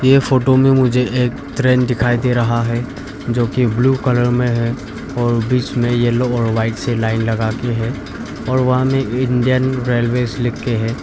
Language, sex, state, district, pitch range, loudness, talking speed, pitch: Hindi, male, Arunachal Pradesh, Papum Pare, 120-130 Hz, -16 LUFS, 190 wpm, 125 Hz